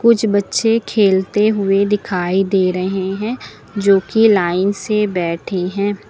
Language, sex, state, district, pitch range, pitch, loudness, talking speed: Hindi, female, Uttar Pradesh, Lucknow, 190-210 Hz, 200 Hz, -16 LUFS, 140 wpm